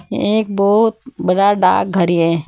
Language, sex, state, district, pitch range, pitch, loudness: Hindi, female, Uttar Pradesh, Saharanpur, 175-215 Hz, 200 Hz, -15 LUFS